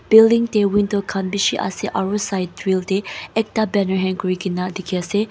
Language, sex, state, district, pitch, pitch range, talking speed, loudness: Nagamese, female, Mizoram, Aizawl, 195 Hz, 185-210 Hz, 190 wpm, -20 LUFS